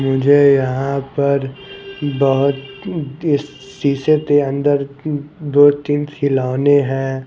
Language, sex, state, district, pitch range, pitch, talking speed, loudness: Hindi, male, Bihar, Patna, 135-145 Hz, 140 Hz, 105 wpm, -16 LUFS